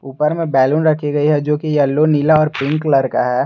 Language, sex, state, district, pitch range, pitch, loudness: Hindi, male, Jharkhand, Garhwa, 140-155 Hz, 150 Hz, -15 LUFS